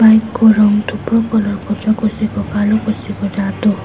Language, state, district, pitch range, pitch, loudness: Nepali, West Bengal, Darjeeling, 205-220 Hz, 215 Hz, -15 LUFS